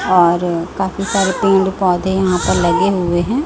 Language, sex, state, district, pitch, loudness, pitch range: Hindi, female, Chhattisgarh, Raipur, 185 Hz, -15 LUFS, 180-190 Hz